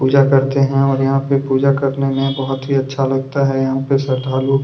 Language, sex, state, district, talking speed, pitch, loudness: Hindi, male, Chhattisgarh, Kabirdham, 235 wpm, 135 Hz, -16 LUFS